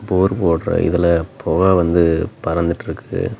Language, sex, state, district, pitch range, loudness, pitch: Tamil, male, Tamil Nadu, Namakkal, 85-95 Hz, -17 LUFS, 85 Hz